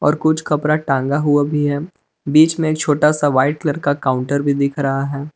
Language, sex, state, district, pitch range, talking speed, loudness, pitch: Hindi, male, Jharkhand, Palamu, 140-155 Hz, 225 wpm, -17 LUFS, 145 Hz